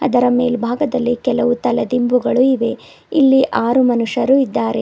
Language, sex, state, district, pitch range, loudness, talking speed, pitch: Kannada, female, Karnataka, Bidar, 240-260 Hz, -16 LUFS, 110 wpm, 245 Hz